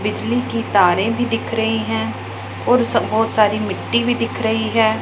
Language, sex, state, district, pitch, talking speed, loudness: Hindi, female, Punjab, Pathankot, 215 Hz, 180 wpm, -18 LUFS